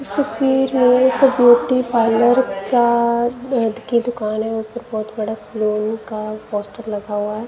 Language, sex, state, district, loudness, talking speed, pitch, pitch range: Hindi, female, Punjab, Kapurthala, -18 LUFS, 170 wpm, 235 Hz, 215-250 Hz